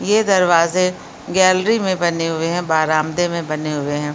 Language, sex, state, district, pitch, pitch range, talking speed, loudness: Hindi, female, Uttarakhand, Uttarkashi, 170 Hz, 155-185 Hz, 175 wpm, -17 LUFS